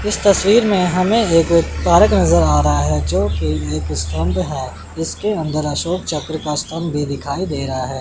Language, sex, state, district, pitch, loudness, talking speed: Hindi, male, Chandigarh, Chandigarh, 150 Hz, -17 LUFS, 185 wpm